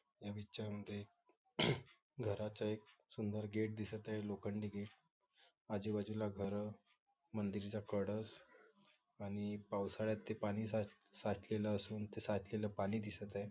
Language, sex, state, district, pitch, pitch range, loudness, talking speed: Marathi, male, Maharashtra, Nagpur, 105 Hz, 105-110 Hz, -44 LUFS, 125 wpm